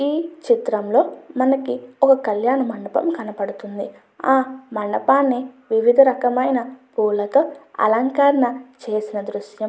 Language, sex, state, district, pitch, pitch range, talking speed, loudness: Telugu, female, Andhra Pradesh, Guntur, 255 Hz, 220-270 Hz, 105 wpm, -20 LUFS